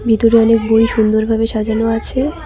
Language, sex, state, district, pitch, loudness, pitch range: Bengali, female, West Bengal, Cooch Behar, 225 Hz, -14 LUFS, 220-230 Hz